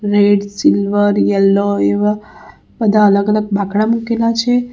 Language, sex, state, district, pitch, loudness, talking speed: Gujarati, female, Gujarat, Valsad, 205 Hz, -14 LUFS, 125 wpm